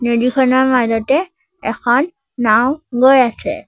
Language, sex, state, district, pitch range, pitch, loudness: Assamese, female, Assam, Sonitpur, 240-275 Hz, 260 Hz, -15 LUFS